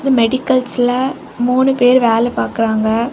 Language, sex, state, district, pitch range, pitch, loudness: Tamil, female, Tamil Nadu, Kanyakumari, 230-260 Hz, 250 Hz, -14 LUFS